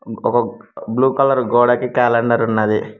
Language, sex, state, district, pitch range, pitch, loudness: Telugu, male, Telangana, Mahabubabad, 115-125 Hz, 120 Hz, -16 LUFS